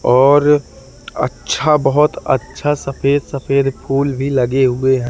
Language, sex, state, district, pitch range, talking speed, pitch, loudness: Hindi, male, Madhya Pradesh, Katni, 135-145 Hz, 115 wpm, 135 Hz, -15 LUFS